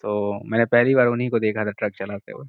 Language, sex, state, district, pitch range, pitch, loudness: Hindi, male, Uttar Pradesh, Gorakhpur, 105-120 Hz, 115 Hz, -21 LUFS